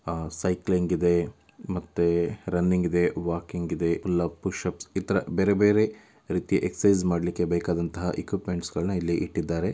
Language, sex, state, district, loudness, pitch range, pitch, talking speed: Kannada, male, Karnataka, Dakshina Kannada, -26 LUFS, 85-90 Hz, 85 Hz, 130 wpm